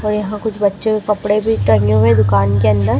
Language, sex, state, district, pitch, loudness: Hindi, female, Madhya Pradesh, Dhar, 195 Hz, -15 LUFS